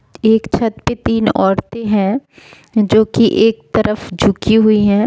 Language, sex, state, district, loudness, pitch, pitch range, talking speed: Hindi, female, Jharkhand, Sahebganj, -14 LUFS, 215 Hz, 205-225 Hz, 155 wpm